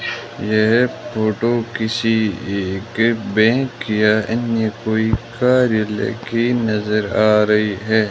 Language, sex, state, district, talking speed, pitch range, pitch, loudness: Hindi, male, Rajasthan, Bikaner, 105 wpm, 105-115 Hz, 110 Hz, -18 LUFS